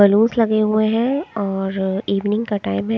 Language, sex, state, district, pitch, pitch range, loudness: Hindi, female, Haryana, Charkhi Dadri, 205 Hz, 195-220 Hz, -19 LUFS